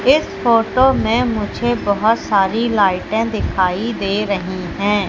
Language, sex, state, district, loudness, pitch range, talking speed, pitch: Hindi, female, Madhya Pradesh, Katni, -17 LUFS, 200-235 Hz, 130 wpm, 215 Hz